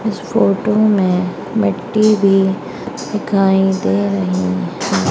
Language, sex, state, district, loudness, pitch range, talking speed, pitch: Hindi, female, Madhya Pradesh, Dhar, -16 LUFS, 180-215 Hz, 105 wpm, 195 Hz